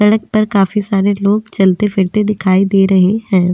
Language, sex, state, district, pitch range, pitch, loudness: Hindi, female, Delhi, New Delhi, 195-210 Hz, 200 Hz, -13 LUFS